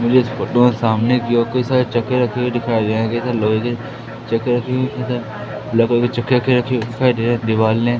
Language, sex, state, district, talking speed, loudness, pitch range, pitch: Hindi, male, Madhya Pradesh, Katni, 125 wpm, -17 LUFS, 115-125 Hz, 120 Hz